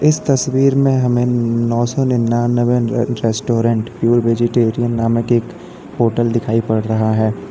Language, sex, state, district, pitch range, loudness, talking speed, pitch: Hindi, male, Uttar Pradesh, Lalitpur, 115-120 Hz, -16 LUFS, 135 wpm, 120 Hz